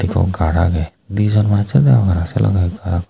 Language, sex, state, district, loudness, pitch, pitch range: Chakma, male, Tripura, Unakoti, -16 LUFS, 100 Hz, 90-105 Hz